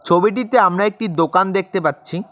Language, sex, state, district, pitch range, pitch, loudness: Bengali, male, West Bengal, Cooch Behar, 175-210 Hz, 190 Hz, -17 LUFS